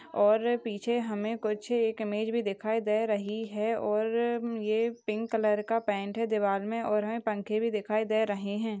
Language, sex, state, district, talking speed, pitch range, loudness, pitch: Hindi, female, Maharashtra, Sindhudurg, 190 wpm, 210-230 Hz, -30 LUFS, 220 Hz